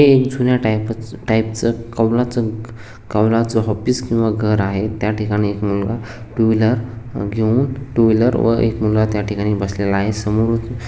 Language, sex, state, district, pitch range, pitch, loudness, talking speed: Marathi, male, Maharashtra, Sindhudurg, 105-115 Hz, 110 Hz, -18 LUFS, 170 wpm